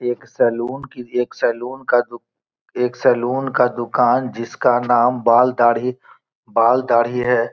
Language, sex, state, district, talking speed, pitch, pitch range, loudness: Hindi, male, Bihar, Gopalganj, 145 wpm, 120 Hz, 120-125 Hz, -18 LUFS